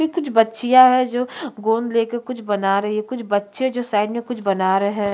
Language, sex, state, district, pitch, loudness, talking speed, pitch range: Hindi, female, Chhattisgarh, Kabirdham, 230 Hz, -19 LUFS, 245 wpm, 205-250 Hz